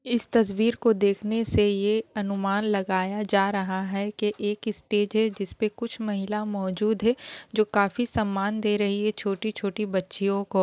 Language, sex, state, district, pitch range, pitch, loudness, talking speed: Hindi, female, Bihar, Kishanganj, 200-220 Hz, 210 Hz, -26 LUFS, 170 wpm